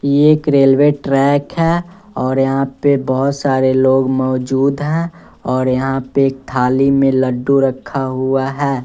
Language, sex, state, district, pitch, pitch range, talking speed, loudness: Hindi, male, Bihar, West Champaran, 135 Hz, 130-140 Hz, 150 wpm, -15 LUFS